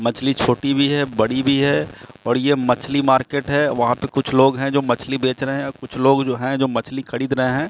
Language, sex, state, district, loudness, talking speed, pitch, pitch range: Hindi, male, Bihar, Katihar, -19 LUFS, 240 wpm, 135 Hz, 125-140 Hz